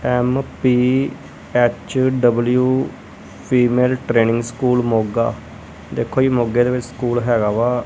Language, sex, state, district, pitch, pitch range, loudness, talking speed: Punjabi, male, Punjab, Kapurthala, 120 Hz, 120-125 Hz, -18 LUFS, 245 wpm